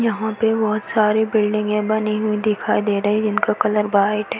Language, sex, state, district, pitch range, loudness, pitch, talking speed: Hindi, female, Uttar Pradesh, Varanasi, 210-215 Hz, -19 LUFS, 215 Hz, 230 wpm